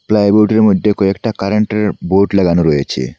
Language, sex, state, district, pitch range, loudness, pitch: Bengali, male, Assam, Hailakandi, 95-105 Hz, -13 LUFS, 105 Hz